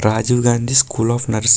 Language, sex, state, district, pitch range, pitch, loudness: Telugu, male, Karnataka, Bellary, 110-120 Hz, 120 Hz, -16 LUFS